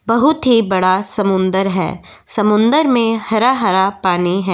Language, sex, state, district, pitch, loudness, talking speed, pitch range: Hindi, female, Goa, North and South Goa, 210 Hz, -14 LUFS, 145 wpm, 190-230 Hz